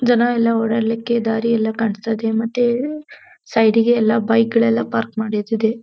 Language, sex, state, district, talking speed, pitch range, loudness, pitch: Kannada, female, Karnataka, Dharwad, 165 wpm, 220-230 Hz, -18 LUFS, 225 Hz